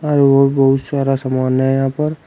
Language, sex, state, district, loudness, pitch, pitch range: Hindi, male, Uttar Pradesh, Shamli, -15 LUFS, 135 Hz, 135-140 Hz